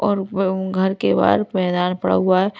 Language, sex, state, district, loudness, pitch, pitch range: Hindi, female, Punjab, Kapurthala, -19 LUFS, 190 Hz, 180-195 Hz